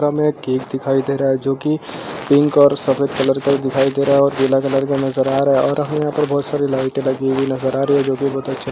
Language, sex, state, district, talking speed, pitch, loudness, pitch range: Hindi, male, Uttar Pradesh, Jalaun, 305 wpm, 135 Hz, -17 LUFS, 135-140 Hz